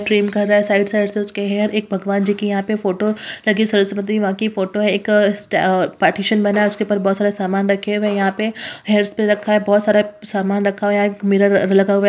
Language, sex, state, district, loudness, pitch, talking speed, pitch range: Hindi, female, Bihar, Purnia, -17 LUFS, 205 Hz, 265 wpm, 200-210 Hz